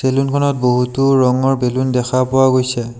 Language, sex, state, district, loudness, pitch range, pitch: Assamese, male, Assam, Sonitpur, -15 LUFS, 125-135 Hz, 130 Hz